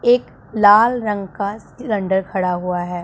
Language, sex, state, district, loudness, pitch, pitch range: Hindi, female, Punjab, Pathankot, -18 LUFS, 200 Hz, 185-220 Hz